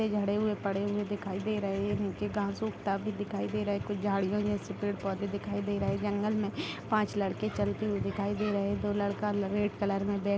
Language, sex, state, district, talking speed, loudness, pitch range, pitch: Hindi, female, Bihar, Darbhanga, 245 wpm, -32 LUFS, 200-205 Hz, 205 Hz